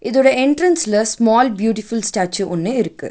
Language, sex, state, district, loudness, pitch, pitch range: Tamil, female, Tamil Nadu, Nilgiris, -16 LUFS, 225 Hz, 210-265 Hz